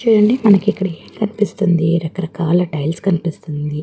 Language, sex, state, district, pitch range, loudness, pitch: Telugu, female, Andhra Pradesh, Guntur, 165-210 Hz, -17 LUFS, 180 Hz